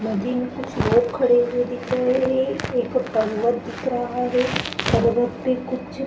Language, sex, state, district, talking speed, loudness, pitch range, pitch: Hindi, female, Chhattisgarh, Balrampur, 180 wpm, -22 LUFS, 240-255 Hz, 250 Hz